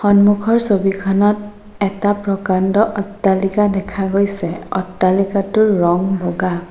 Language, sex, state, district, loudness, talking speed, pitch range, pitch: Assamese, female, Assam, Sonitpur, -16 LUFS, 90 wpm, 190-205 Hz, 200 Hz